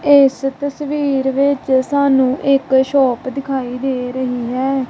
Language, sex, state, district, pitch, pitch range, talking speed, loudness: Punjabi, female, Punjab, Kapurthala, 270 Hz, 260-280 Hz, 125 wpm, -16 LUFS